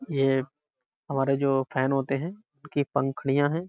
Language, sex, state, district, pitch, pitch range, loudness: Hindi, male, Uttar Pradesh, Budaun, 140 Hz, 135-150 Hz, -27 LUFS